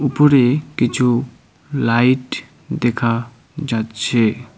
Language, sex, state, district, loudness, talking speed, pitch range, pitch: Bengali, male, West Bengal, Cooch Behar, -17 LUFS, 65 wpm, 120-140 Hz, 125 Hz